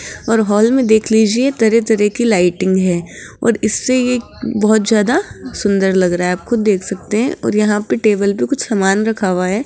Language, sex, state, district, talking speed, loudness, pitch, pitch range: Hindi, female, Rajasthan, Jaipur, 210 wpm, -15 LUFS, 215 Hz, 200-235 Hz